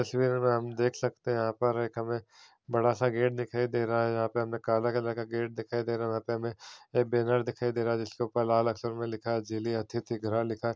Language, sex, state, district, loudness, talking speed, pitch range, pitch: Hindi, male, Bihar, Saharsa, -31 LUFS, 280 wpm, 115-120 Hz, 115 Hz